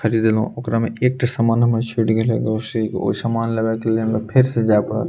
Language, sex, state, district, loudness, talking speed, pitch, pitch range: Maithili, male, Bihar, Purnia, -19 LUFS, 225 wpm, 115 Hz, 110-115 Hz